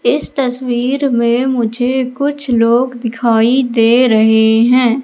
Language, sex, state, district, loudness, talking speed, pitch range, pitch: Hindi, female, Madhya Pradesh, Katni, -13 LUFS, 120 wpm, 230-260 Hz, 245 Hz